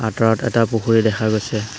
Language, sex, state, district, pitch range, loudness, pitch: Assamese, male, Assam, Hailakandi, 110-115 Hz, -18 LUFS, 110 Hz